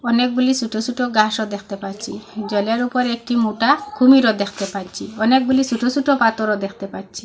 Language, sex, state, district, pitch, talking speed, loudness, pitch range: Bengali, female, Assam, Hailakandi, 225 Hz, 155 wpm, -18 LUFS, 210-250 Hz